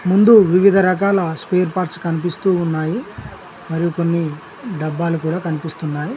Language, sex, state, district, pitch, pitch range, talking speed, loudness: Telugu, male, Telangana, Mahabubabad, 170 Hz, 160-185 Hz, 115 wpm, -17 LUFS